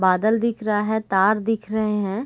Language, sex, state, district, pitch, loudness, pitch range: Hindi, female, Bihar, Sitamarhi, 215 Hz, -21 LUFS, 205-220 Hz